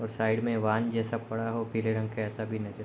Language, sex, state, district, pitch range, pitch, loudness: Hindi, male, Bihar, Sitamarhi, 110-115 Hz, 110 Hz, -31 LUFS